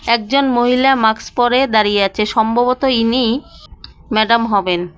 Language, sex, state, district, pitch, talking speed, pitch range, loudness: Bengali, female, West Bengal, Cooch Behar, 230 Hz, 120 wpm, 215-250 Hz, -14 LUFS